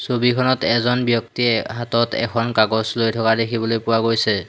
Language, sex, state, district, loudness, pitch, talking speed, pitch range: Assamese, male, Assam, Hailakandi, -19 LUFS, 115 Hz, 145 wpm, 115-120 Hz